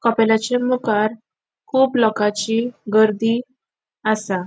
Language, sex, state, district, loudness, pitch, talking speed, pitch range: Konkani, female, Goa, North and South Goa, -19 LUFS, 225 Hz, 80 wpm, 215-245 Hz